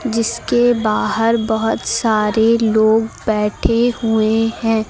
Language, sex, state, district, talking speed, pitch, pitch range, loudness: Hindi, female, Uttar Pradesh, Lucknow, 100 wpm, 225 Hz, 220-230 Hz, -16 LUFS